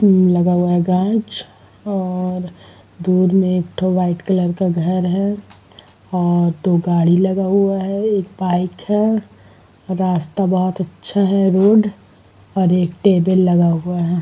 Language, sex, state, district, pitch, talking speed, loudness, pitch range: Hindi, female, Uttar Pradesh, Varanasi, 185 Hz, 150 wpm, -17 LUFS, 175-195 Hz